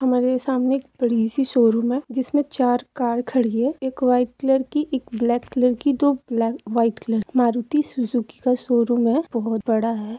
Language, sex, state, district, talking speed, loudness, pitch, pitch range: Hindi, female, Jharkhand, Jamtara, 180 wpm, -21 LUFS, 245 Hz, 235-265 Hz